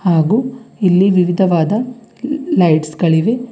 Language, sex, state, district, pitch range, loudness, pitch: Kannada, female, Karnataka, Bidar, 175-240 Hz, -14 LUFS, 190 Hz